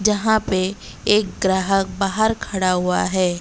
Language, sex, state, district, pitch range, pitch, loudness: Hindi, female, Odisha, Malkangiri, 185-210 Hz, 195 Hz, -20 LUFS